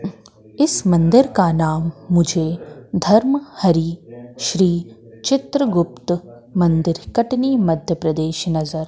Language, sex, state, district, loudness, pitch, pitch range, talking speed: Hindi, female, Madhya Pradesh, Katni, -18 LUFS, 170 Hz, 160-205 Hz, 100 wpm